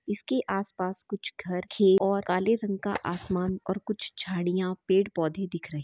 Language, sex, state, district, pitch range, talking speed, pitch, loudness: Hindi, female, Chhattisgarh, Bastar, 180-200 Hz, 185 wpm, 190 Hz, -28 LUFS